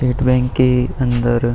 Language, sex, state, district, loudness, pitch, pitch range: Hindi, male, Bihar, Vaishali, -16 LUFS, 125 Hz, 120-130 Hz